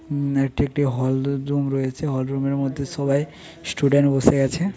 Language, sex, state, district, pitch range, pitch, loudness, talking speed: Bengali, male, West Bengal, Paschim Medinipur, 135-145 Hz, 140 Hz, -22 LUFS, 175 wpm